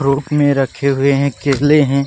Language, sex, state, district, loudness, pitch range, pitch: Hindi, male, Uttar Pradesh, Varanasi, -15 LUFS, 140-145 Hz, 140 Hz